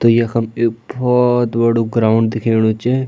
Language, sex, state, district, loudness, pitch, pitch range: Garhwali, male, Uttarakhand, Tehri Garhwal, -15 LUFS, 115 Hz, 115-120 Hz